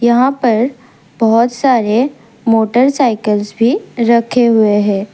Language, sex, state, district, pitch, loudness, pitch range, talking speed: Hindi, female, Tripura, West Tripura, 235 Hz, -13 LUFS, 220-250 Hz, 115 wpm